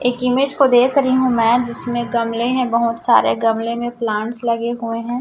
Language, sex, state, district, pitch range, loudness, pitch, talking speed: Hindi, female, Chhattisgarh, Raipur, 230-250 Hz, -17 LUFS, 240 Hz, 205 wpm